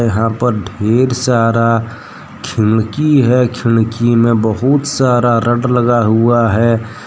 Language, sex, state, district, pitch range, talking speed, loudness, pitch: Hindi, male, Jharkhand, Deoghar, 115-125 Hz, 110 wpm, -13 LUFS, 115 Hz